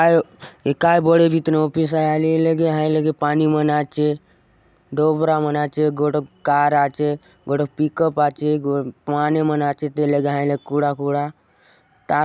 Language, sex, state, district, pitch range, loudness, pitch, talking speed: Halbi, male, Chhattisgarh, Bastar, 145-155 Hz, -19 LUFS, 150 Hz, 180 wpm